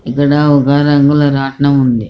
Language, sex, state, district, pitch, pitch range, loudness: Telugu, male, Andhra Pradesh, Krishna, 140 Hz, 135-145 Hz, -11 LUFS